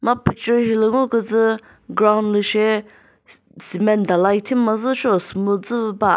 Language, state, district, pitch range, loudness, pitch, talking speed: Chakhesang, Nagaland, Dimapur, 205-235 Hz, -18 LUFS, 215 Hz, 155 wpm